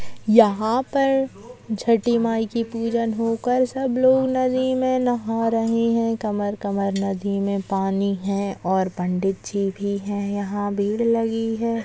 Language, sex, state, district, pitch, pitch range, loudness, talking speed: Hindi, female, Chhattisgarh, Kabirdham, 225 Hz, 200-235 Hz, -22 LUFS, 140 wpm